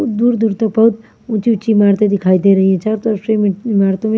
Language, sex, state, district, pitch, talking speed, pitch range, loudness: Hindi, female, Maharashtra, Mumbai Suburban, 215 Hz, 230 wpm, 200-225 Hz, -14 LUFS